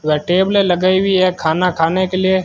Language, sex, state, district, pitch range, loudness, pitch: Hindi, male, Rajasthan, Bikaner, 170-185 Hz, -15 LUFS, 185 Hz